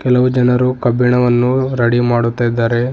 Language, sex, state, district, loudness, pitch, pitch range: Kannada, male, Karnataka, Bidar, -14 LUFS, 125 Hz, 120-125 Hz